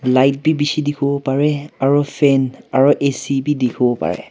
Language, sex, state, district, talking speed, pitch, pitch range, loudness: Nagamese, male, Nagaland, Kohima, 180 wpm, 140 Hz, 135-145 Hz, -17 LUFS